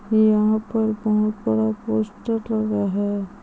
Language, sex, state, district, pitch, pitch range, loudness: Hindi, female, Andhra Pradesh, Chittoor, 215 Hz, 200-220 Hz, -22 LUFS